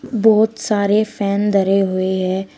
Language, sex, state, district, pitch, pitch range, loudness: Hindi, female, Uttar Pradesh, Shamli, 200 Hz, 190-215 Hz, -16 LUFS